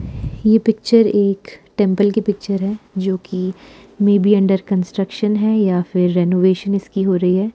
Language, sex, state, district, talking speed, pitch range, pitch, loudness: Hindi, female, Himachal Pradesh, Shimla, 165 wpm, 185-210 Hz, 195 Hz, -17 LUFS